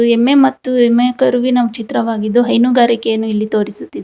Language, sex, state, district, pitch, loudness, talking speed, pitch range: Kannada, female, Karnataka, Bangalore, 240 Hz, -13 LUFS, 120 wpm, 230-250 Hz